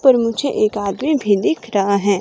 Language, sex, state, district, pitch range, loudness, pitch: Hindi, female, Himachal Pradesh, Shimla, 200-260 Hz, -17 LUFS, 210 Hz